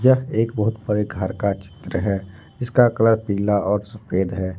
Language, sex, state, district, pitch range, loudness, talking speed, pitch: Hindi, male, Jharkhand, Ranchi, 95-110 Hz, -21 LUFS, 185 wpm, 105 Hz